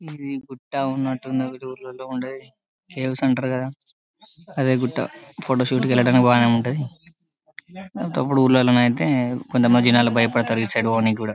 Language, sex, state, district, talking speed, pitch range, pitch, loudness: Telugu, male, Telangana, Karimnagar, 120 wpm, 125-140 Hz, 130 Hz, -20 LUFS